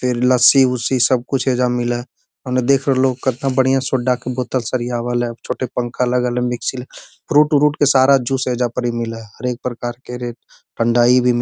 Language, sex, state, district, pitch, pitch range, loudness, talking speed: Magahi, male, Bihar, Gaya, 125 Hz, 120-130 Hz, -17 LUFS, 205 wpm